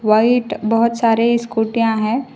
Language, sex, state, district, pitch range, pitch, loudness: Hindi, female, Karnataka, Koppal, 225-235 Hz, 230 Hz, -16 LUFS